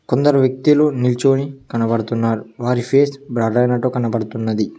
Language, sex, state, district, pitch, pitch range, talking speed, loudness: Telugu, male, Telangana, Mahabubabad, 125 Hz, 115-135 Hz, 115 wpm, -17 LUFS